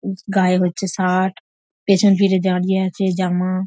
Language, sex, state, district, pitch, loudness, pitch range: Bengali, female, West Bengal, North 24 Parganas, 190 Hz, -18 LUFS, 185-195 Hz